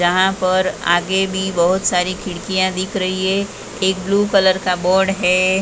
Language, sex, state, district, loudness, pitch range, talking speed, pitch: Hindi, female, Maharashtra, Mumbai Suburban, -17 LUFS, 185-190 Hz, 180 wpm, 190 Hz